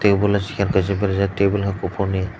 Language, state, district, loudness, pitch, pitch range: Kokborok, Tripura, Dhalai, -20 LUFS, 100 Hz, 95-100 Hz